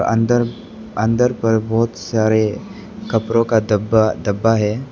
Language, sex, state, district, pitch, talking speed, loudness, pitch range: Hindi, male, Arunachal Pradesh, Lower Dibang Valley, 115 Hz, 120 wpm, -17 LUFS, 110-115 Hz